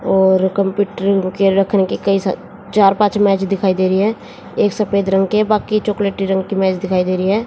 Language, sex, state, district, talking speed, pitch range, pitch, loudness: Hindi, female, Haryana, Jhajjar, 215 wpm, 190-205 Hz, 195 Hz, -16 LUFS